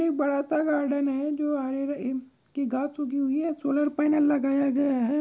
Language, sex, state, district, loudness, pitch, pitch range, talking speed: Hindi, male, Uttar Pradesh, Jyotiba Phule Nagar, -26 LUFS, 285 Hz, 275-295 Hz, 220 wpm